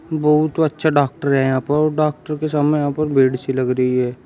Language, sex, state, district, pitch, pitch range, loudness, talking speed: Hindi, male, Uttar Pradesh, Shamli, 145 Hz, 130-155 Hz, -18 LUFS, 240 wpm